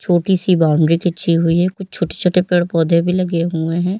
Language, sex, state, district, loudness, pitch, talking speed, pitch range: Hindi, female, Uttar Pradesh, Lalitpur, -16 LUFS, 175 Hz, 180 wpm, 165-180 Hz